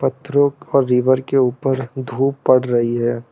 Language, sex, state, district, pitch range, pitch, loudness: Hindi, male, Arunachal Pradesh, Lower Dibang Valley, 125-135 Hz, 130 Hz, -18 LUFS